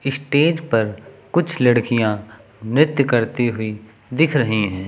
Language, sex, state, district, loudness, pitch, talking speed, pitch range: Hindi, male, Uttar Pradesh, Lucknow, -19 LUFS, 120 Hz, 125 wpm, 110-145 Hz